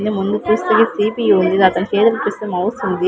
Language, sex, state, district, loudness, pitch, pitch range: Telugu, female, Andhra Pradesh, Sri Satya Sai, -16 LUFS, 210 Hz, 190-220 Hz